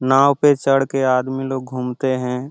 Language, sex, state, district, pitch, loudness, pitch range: Hindi, male, Bihar, Lakhisarai, 130 Hz, -18 LUFS, 130-135 Hz